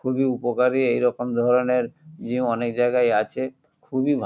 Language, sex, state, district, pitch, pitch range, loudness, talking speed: Bengali, male, West Bengal, North 24 Parganas, 125 Hz, 120-130 Hz, -22 LUFS, 155 wpm